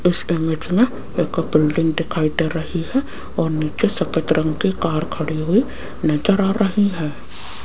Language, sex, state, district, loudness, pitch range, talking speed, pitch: Hindi, female, Rajasthan, Jaipur, -20 LUFS, 155-190 Hz, 165 wpm, 165 Hz